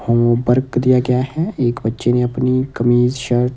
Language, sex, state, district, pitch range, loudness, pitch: Hindi, male, Himachal Pradesh, Shimla, 120-130 Hz, -16 LUFS, 125 Hz